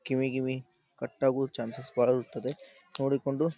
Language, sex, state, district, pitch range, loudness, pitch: Kannada, male, Karnataka, Dharwad, 130-140 Hz, -31 LUFS, 135 Hz